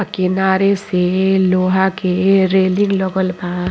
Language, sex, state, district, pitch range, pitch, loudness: Bhojpuri, female, Uttar Pradesh, Ghazipur, 185-190 Hz, 190 Hz, -15 LUFS